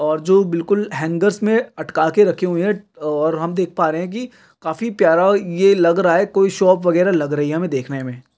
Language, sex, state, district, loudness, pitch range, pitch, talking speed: Hindi, male, Uttarakhand, Tehri Garhwal, -17 LUFS, 160-195 Hz, 175 Hz, 220 wpm